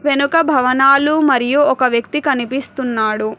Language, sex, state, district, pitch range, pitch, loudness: Telugu, female, Telangana, Hyderabad, 245-290 Hz, 270 Hz, -14 LUFS